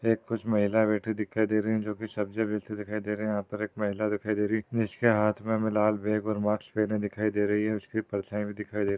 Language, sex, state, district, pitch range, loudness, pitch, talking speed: Hindi, male, Maharashtra, Sindhudurg, 105-110 Hz, -29 LUFS, 105 Hz, 300 wpm